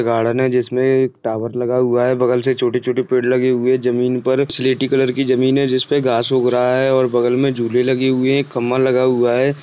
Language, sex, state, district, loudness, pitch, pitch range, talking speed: Hindi, male, Maharashtra, Aurangabad, -16 LUFS, 125 Hz, 125-130 Hz, 230 wpm